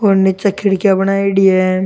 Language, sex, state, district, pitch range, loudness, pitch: Rajasthani, male, Rajasthan, Churu, 190-195 Hz, -13 LUFS, 195 Hz